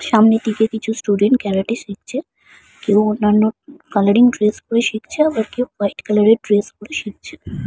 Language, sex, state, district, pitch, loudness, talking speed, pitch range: Bengali, female, West Bengal, Purulia, 220 Hz, -17 LUFS, 155 wpm, 210-235 Hz